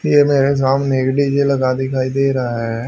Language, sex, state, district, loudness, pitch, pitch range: Hindi, male, Haryana, Jhajjar, -16 LUFS, 135 Hz, 130-140 Hz